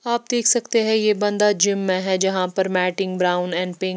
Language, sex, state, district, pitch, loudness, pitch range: Hindi, female, Bihar, West Champaran, 195 Hz, -20 LUFS, 185-215 Hz